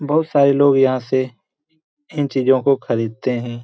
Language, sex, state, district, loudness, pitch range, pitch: Hindi, male, Jharkhand, Jamtara, -17 LUFS, 125-145 Hz, 135 Hz